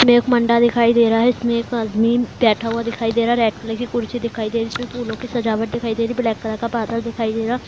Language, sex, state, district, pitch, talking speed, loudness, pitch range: Hindi, female, Bihar, Lakhisarai, 230 Hz, 295 wpm, -19 LUFS, 225-240 Hz